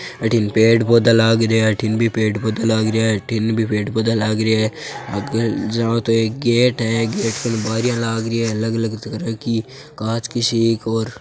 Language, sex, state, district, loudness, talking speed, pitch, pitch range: Marwari, male, Rajasthan, Churu, -18 LUFS, 225 wpm, 115 Hz, 110-115 Hz